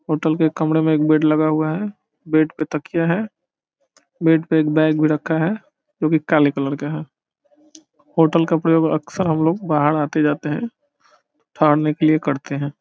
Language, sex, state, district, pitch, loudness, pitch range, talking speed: Hindi, male, Bihar, Saran, 155 Hz, -19 LUFS, 155-165 Hz, 185 wpm